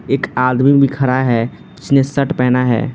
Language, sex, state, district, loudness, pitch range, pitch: Hindi, male, Arunachal Pradesh, Lower Dibang Valley, -14 LUFS, 125-140 Hz, 130 Hz